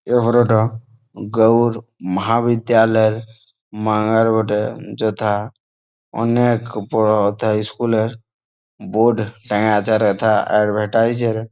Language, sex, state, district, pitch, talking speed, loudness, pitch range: Bengali, male, West Bengal, Malda, 110 Hz, 100 wpm, -17 LUFS, 105-115 Hz